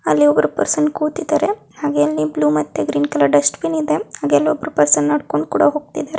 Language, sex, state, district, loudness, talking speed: Kannada, female, Karnataka, Chamarajanagar, -17 LUFS, 195 wpm